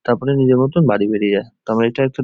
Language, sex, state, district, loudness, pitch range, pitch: Bengali, male, West Bengal, Jhargram, -16 LUFS, 110-135 Hz, 125 Hz